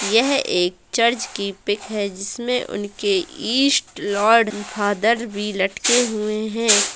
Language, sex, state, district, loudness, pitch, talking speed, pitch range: Hindi, female, Bihar, Madhepura, -20 LUFS, 215 Hz, 130 wpm, 205-240 Hz